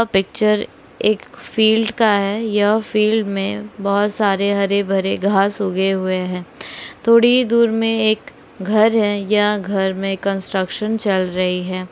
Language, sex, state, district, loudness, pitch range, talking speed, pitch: Hindi, female, Bihar, Sitamarhi, -17 LUFS, 195-220 Hz, 150 wpm, 205 Hz